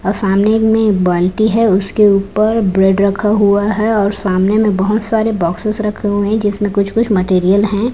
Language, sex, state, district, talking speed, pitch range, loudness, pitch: Hindi, female, Chhattisgarh, Raipur, 195 wpm, 195-215 Hz, -13 LUFS, 205 Hz